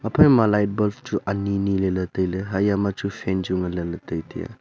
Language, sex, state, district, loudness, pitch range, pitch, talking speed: Wancho, male, Arunachal Pradesh, Longding, -22 LUFS, 95-105 Hz, 100 Hz, 210 wpm